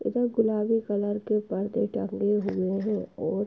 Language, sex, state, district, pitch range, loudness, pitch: Hindi, female, Uttar Pradesh, Etah, 205-225 Hz, -27 LUFS, 210 Hz